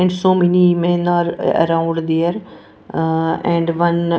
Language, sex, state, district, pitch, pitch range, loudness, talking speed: English, female, Punjab, Pathankot, 170 Hz, 165-175 Hz, -16 LUFS, 145 wpm